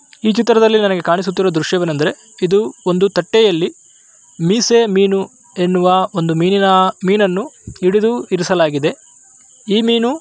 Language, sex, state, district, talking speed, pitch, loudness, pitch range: Kannada, male, Karnataka, Raichur, 105 wpm, 195 Hz, -15 LUFS, 185-230 Hz